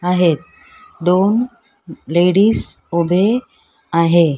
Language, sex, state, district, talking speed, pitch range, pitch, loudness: Marathi, female, Maharashtra, Mumbai Suburban, 70 wpm, 170-230 Hz, 180 Hz, -16 LUFS